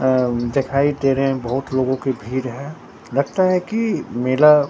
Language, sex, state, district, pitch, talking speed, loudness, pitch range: Hindi, male, Bihar, Katihar, 135 Hz, 180 wpm, -19 LUFS, 130-145 Hz